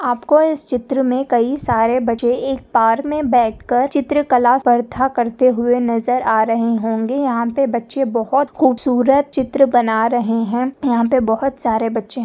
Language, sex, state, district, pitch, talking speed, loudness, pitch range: Hindi, female, Maharashtra, Nagpur, 245 Hz, 145 wpm, -16 LUFS, 235-270 Hz